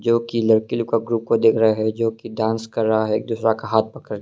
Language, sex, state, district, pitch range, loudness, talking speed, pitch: Hindi, male, Arunachal Pradesh, Longding, 110-115 Hz, -20 LUFS, 300 wpm, 115 Hz